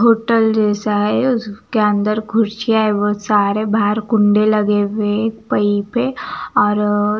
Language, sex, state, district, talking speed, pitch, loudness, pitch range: Hindi, female, Bihar, Katihar, 140 wpm, 210 Hz, -16 LUFS, 205-220 Hz